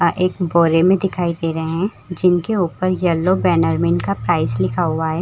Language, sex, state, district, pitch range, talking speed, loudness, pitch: Hindi, female, Bihar, Madhepura, 165-180 Hz, 205 wpm, -18 LUFS, 170 Hz